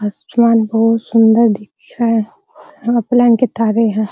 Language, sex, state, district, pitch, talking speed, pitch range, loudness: Hindi, female, Bihar, Araria, 225 Hz, 130 wpm, 220-235 Hz, -14 LUFS